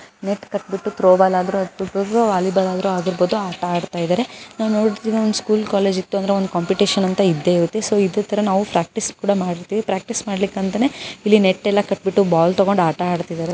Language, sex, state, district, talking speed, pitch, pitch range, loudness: Kannada, female, Karnataka, Bijapur, 145 wpm, 195 Hz, 185-210 Hz, -19 LUFS